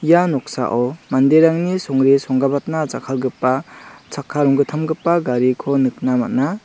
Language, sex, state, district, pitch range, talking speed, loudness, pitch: Garo, male, Meghalaya, South Garo Hills, 130-165 Hz, 100 wpm, -17 LUFS, 140 Hz